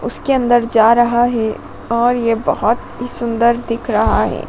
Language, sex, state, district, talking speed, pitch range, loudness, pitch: Hindi, female, Madhya Pradesh, Dhar, 175 wpm, 230-240 Hz, -15 LUFS, 235 Hz